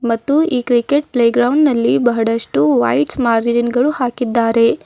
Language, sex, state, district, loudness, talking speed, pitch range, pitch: Kannada, female, Karnataka, Bidar, -15 LUFS, 135 wpm, 230-255 Hz, 240 Hz